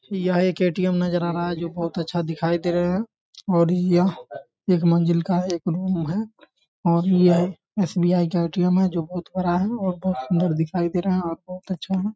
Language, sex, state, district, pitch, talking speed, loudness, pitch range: Hindi, male, Bihar, Bhagalpur, 180 Hz, 210 wpm, -22 LUFS, 170-185 Hz